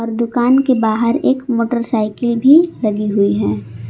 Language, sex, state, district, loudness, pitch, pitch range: Hindi, female, Jharkhand, Palamu, -15 LUFS, 235 Hz, 210-250 Hz